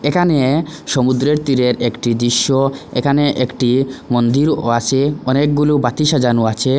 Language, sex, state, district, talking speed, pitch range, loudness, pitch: Bengali, male, Assam, Hailakandi, 115 wpm, 120-145 Hz, -15 LUFS, 135 Hz